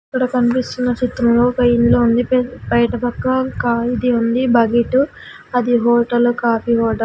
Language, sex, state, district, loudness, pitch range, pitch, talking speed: Telugu, female, Andhra Pradesh, Sri Satya Sai, -16 LUFS, 235-250 Hz, 240 Hz, 145 wpm